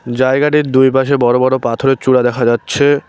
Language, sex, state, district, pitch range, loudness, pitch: Bengali, male, West Bengal, Cooch Behar, 120-140 Hz, -13 LUFS, 130 Hz